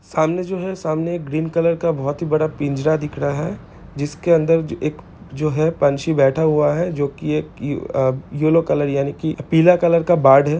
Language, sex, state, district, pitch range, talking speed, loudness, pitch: Hindi, male, Chhattisgarh, Bilaspur, 145-165 Hz, 185 wpm, -19 LUFS, 155 Hz